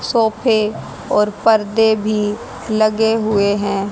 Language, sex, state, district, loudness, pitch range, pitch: Hindi, female, Haryana, Jhajjar, -16 LUFS, 210-220 Hz, 215 Hz